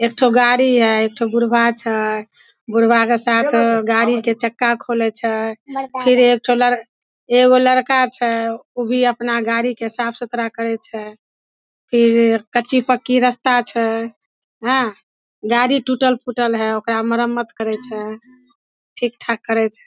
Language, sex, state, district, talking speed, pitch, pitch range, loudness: Maithili, female, Bihar, Samastipur, 140 wpm, 235 Hz, 225-245 Hz, -17 LUFS